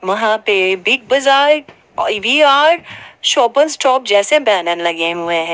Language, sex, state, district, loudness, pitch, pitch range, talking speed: Hindi, female, Jharkhand, Ranchi, -13 LUFS, 220 Hz, 190-280 Hz, 120 wpm